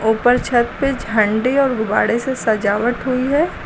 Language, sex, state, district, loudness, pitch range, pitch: Hindi, female, Uttar Pradesh, Lucknow, -17 LUFS, 220-260 Hz, 240 Hz